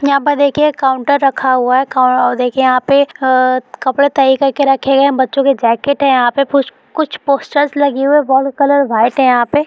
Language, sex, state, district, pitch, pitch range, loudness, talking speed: Hindi, female, Bihar, Darbhanga, 275 Hz, 260-285 Hz, -12 LUFS, 190 wpm